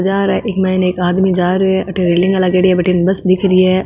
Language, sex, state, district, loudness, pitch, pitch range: Marwari, female, Rajasthan, Nagaur, -13 LUFS, 185 Hz, 180-190 Hz